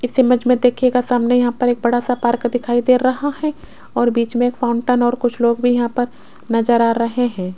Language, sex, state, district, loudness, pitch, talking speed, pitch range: Hindi, female, Rajasthan, Jaipur, -17 LUFS, 245 Hz, 240 wpm, 240-250 Hz